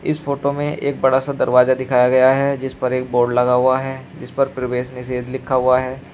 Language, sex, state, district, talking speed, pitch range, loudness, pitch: Hindi, male, Uttar Pradesh, Shamli, 235 wpm, 125-135 Hz, -18 LUFS, 130 Hz